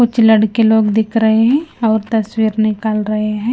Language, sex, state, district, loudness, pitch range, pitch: Hindi, female, Himachal Pradesh, Shimla, -14 LUFS, 215-225 Hz, 220 Hz